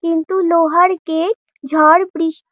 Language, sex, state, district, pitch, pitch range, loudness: Bengali, female, West Bengal, Dakshin Dinajpur, 335 Hz, 320-355 Hz, -14 LUFS